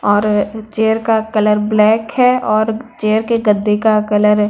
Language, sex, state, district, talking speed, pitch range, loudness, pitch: Hindi, female, Bihar, Patna, 175 wpm, 210-220 Hz, -14 LUFS, 215 Hz